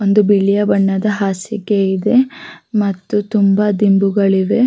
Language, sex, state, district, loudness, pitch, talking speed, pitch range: Kannada, female, Karnataka, Raichur, -15 LUFS, 205 Hz, 90 wpm, 195-210 Hz